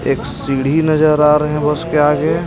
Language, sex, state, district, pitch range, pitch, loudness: Hindi, male, Jharkhand, Ranchi, 150-155 Hz, 150 Hz, -13 LUFS